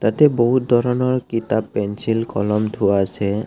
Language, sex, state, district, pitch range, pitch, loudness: Assamese, male, Assam, Kamrup Metropolitan, 105-120 Hz, 115 Hz, -19 LUFS